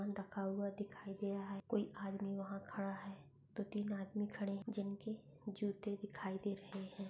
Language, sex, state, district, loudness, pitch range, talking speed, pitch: Hindi, female, Maharashtra, Pune, -45 LUFS, 195-205 Hz, 195 wpm, 200 Hz